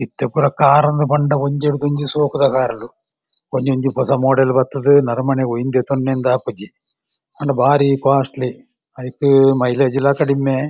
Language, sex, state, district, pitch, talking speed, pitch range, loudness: Tulu, male, Karnataka, Dakshina Kannada, 135 Hz, 120 wpm, 130-145 Hz, -16 LUFS